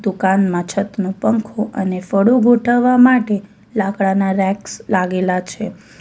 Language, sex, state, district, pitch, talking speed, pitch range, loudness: Gujarati, female, Gujarat, Valsad, 200 Hz, 110 wpm, 190-225 Hz, -16 LUFS